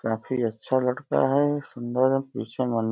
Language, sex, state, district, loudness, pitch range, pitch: Hindi, male, Uttar Pradesh, Deoria, -25 LUFS, 115-135 Hz, 125 Hz